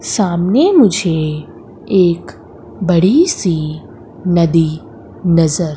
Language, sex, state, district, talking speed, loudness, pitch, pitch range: Hindi, female, Madhya Pradesh, Umaria, 75 wpm, -14 LUFS, 170 Hz, 155-185 Hz